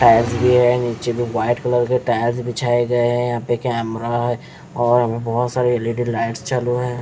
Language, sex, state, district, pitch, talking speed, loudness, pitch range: Hindi, male, Bihar, West Champaran, 120 Hz, 205 wpm, -19 LUFS, 120-125 Hz